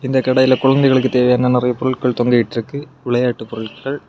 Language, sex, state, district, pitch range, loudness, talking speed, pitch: Tamil, male, Tamil Nadu, Kanyakumari, 120-130 Hz, -16 LUFS, 130 wpm, 125 Hz